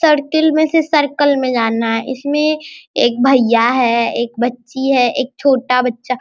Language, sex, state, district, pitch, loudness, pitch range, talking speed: Hindi, male, Bihar, Araria, 260 Hz, -15 LUFS, 240-290 Hz, 175 wpm